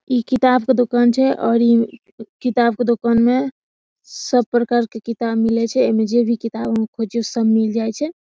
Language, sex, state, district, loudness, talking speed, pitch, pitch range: Maithili, female, Bihar, Samastipur, -18 LUFS, 210 wpm, 235 Hz, 225-245 Hz